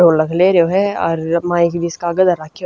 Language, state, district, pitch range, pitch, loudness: Haryanvi, Haryana, Rohtak, 165-180 Hz, 170 Hz, -15 LUFS